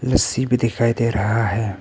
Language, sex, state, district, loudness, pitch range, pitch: Hindi, male, Arunachal Pradesh, Papum Pare, -19 LUFS, 110-125 Hz, 115 Hz